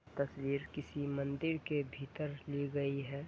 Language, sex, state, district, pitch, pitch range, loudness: Hindi, male, Uttar Pradesh, Ghazipur, 140 Hz, 140-145 Hz, -39 LUFS